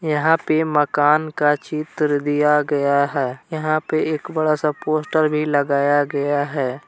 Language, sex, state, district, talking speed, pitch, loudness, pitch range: Hindi, male, Jharkhand, Palamu, 155 wpm, 150 Hz, -19 LUFS, 145-155 Hz